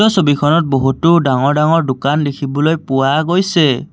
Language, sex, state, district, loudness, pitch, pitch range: Assamese, male, Assam, Kamrup Metropolitan, -14 LUFS, 145 Hz, 135-165 Hz